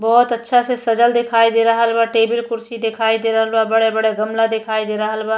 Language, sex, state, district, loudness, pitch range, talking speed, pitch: Bhojpuri, female, Uttar Pradesh, Deoria, -16 LUFS, 225-230 Hz, 235 wpm, 225 Hz